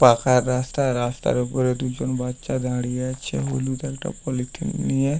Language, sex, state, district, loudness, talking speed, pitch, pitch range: Bengali, male, West Bengal, Paschim Medinipur, -24 LUFS, 140 wpm, 130 Hz, 125-130 Hz